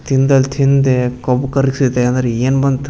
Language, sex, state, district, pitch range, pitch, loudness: Kannada, male, Karnataka, Raichur, 125-135 Hz, 135 Hz, -14 LUFS